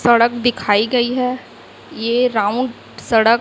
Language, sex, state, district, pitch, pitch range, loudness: Hindi, female, Chhattisgarh, Raipur, 235 Hz, 225-250 Hz, -17 LUFS